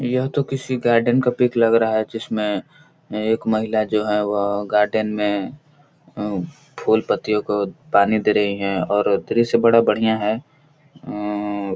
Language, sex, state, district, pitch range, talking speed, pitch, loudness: Hindi, male, Bihar, Gaya, 105-125 Hz, 160 wpm, 110 Hz, -20 LUFS